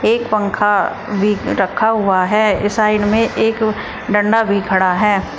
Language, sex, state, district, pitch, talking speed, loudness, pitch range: Hindi, female, Uttar Pradesh, Shamli, 210 Hz, 155 wpm, -15 LUFS, 205-220 Hz